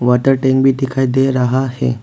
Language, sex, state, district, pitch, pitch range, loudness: Hindi, male, Arunachal Pradesh, Papum Pare, 130 Hz, 125-135 Hz, -14 LUFS